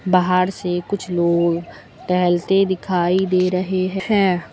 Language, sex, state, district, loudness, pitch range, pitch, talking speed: Hindi, female, Uttar Pradesh, Lucknow, -19 LUFS, 175-190 Hz, 185 Hz, 120 wpm